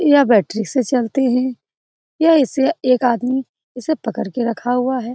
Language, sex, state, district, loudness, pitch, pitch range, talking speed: Hindi, female, Bihar, Saran, -17 LUFS, 255 Hz, 240-265 Hz, 175 wpm